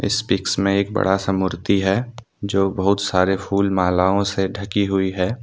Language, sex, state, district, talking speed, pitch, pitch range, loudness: Hindi, male, Jharkhand, Deoghar, 190 wpm, 95 Hz, 95-100 Hz, -20 LUFS